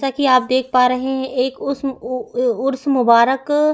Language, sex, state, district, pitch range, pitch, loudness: Hindi, female, Chhattisgarh, Sukma, 250-270 Hz, 260 Hz, -17 LUFS